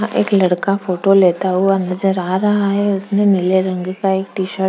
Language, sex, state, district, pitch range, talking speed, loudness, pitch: Hindi, female, Chhattisgarh, Korba, 185-200 Hz, 215 wpm, -16 LUFS, 195 Hz